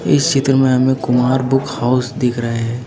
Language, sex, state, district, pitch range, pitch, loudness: Hindi, female, Uttar Pradesh, Lucknow, 125-135 Hz, 130 Hz, -15 LUFS